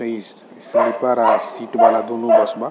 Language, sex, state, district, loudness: Bhojpuri, male, Bihar, East Champaran, -17 LUFS